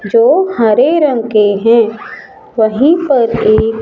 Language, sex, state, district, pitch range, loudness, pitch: Hindi, male, Rajasthan, Jaipur, 220-265 Hz, -11 LUFS, 230 Hz